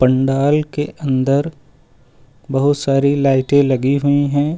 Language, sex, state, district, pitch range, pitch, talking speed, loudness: Hindi, male, Uttar Pradesh, Lucknow, 135-145 Hz, 140 Hz, 120 wpm, -16 LUFS